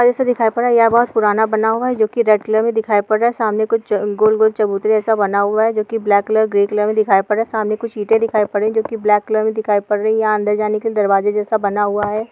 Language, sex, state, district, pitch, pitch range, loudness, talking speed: Hindi, female, Bihar, Bhagalpur, 215 Hz, 210-225 Hz, -16 LUFS, 325 wpm